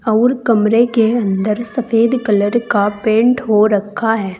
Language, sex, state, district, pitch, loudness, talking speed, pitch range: Hindi, female, Uttar Pradesh, Saharanpur, 225 Hz, -14 LUFS, 150 wpm, 210-235 Hz